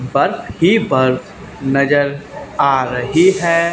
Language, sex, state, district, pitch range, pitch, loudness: Hindi, male, Haryana, Charkhi Dadri, 135-170 Hz, 140 Hz, -15 LUFS